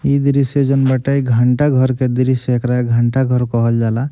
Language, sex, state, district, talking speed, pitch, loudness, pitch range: Bhojpuri, male, Bihar, Gopalganj, 175 wpm, 130 Hz, -15 LUFS, 125-140 Hz